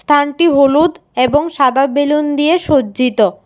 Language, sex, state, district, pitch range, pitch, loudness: Bengali, female, Tripura, West Tripura, 265-300 Hz, 290 Hz, -13 LUFS